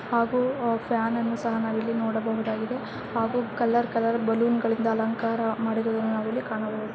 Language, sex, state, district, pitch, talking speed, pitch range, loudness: Kannada, female, Karnataka, Bellary, 230 Hz, 130 wpm, 225-235 Hz, -26 LUFS